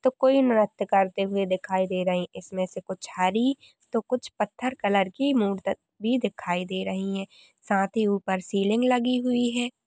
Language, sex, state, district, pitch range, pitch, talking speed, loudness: Hindi, female, Uttar Pradesh, Jyotiba Phule Nagar, 190-245 Hz, 200 Hz, 190 wpm, -26 LUFS